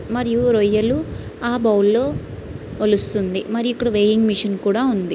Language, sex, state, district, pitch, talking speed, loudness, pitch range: Telugu, female, Andhra Pradesh, Srikakulam, 215 Hz, 130 wpm, -19 LUFS, 205-240 Hz